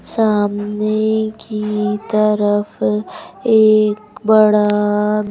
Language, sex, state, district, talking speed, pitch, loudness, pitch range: Hindi, female, Madhya Pradesh, Bhopal, 55 wpm, 210 Hz, -16 LUFS, 210-215 Hz